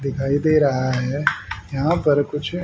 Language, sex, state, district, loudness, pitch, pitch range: Hindi, male, Haryana, Rohtak, -20 LUFS, 140 Hz, 135-150 Hz